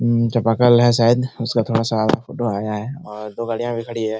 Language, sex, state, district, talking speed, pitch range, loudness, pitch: Hindi, male, Bihar, Supaul, 230 wpm, 110-120 Hz, -19 LUFS, 115 Hz